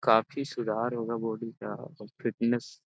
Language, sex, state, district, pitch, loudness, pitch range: Hindi, male, Bihar, Jamui, 115 Hz, -31 LUFS, 115-120 Hz